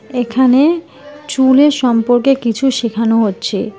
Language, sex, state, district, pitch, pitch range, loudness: Bengali, female, West Bengal, Alipurduar, 255 Hz, 230-275 Hz, -13 LUFS